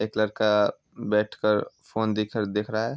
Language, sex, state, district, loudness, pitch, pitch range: Hindi, male, Bihar, Vaishali, -26 LUFS, 105 Hz, 105-110 Hz